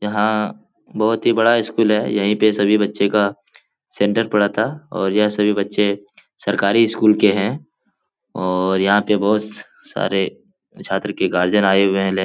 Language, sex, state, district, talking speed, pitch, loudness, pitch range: Hindi, male, Bihar, Jahanabad, 170 wpm, 105 Hz, -18 LUFS, 100-105 Hz